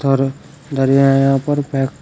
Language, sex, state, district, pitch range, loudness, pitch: Hindi, male, Uttar Pradesh, Shamli, 135-140 Hz, -16 LUFS, 135 Hz